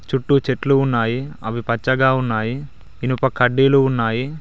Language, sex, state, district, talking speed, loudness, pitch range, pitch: Telugu, male, Telangana, Mahabubabad, 120 wpm, -18 LUFS, 120-135 Hz, 130 Hz